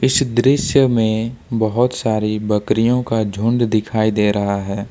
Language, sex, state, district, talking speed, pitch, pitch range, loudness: Hindi, male, Jharkhand, Ranchi, 145 wpm, 110 Hz, 105-120 Hz, -17 LUFS